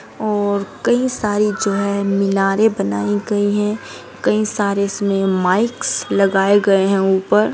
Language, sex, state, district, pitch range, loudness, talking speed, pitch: Hindi, female, Bihar, Saran, 195-210 Hz, -17 LUFS, 145 wpm, 200 Hz